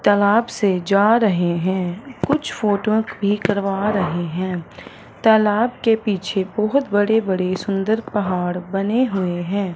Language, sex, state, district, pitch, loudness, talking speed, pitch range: Hindi, male, Punjab, Fazilka, 200 Hz, -19 LUFS, 135 wpm, 185-220 Hz